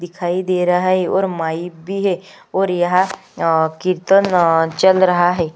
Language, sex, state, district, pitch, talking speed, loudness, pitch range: Hindi, female, Chhattisgarh, Kabirdham, 180 Hz, 150 wpm, -17 LUFS, 170-185 Hz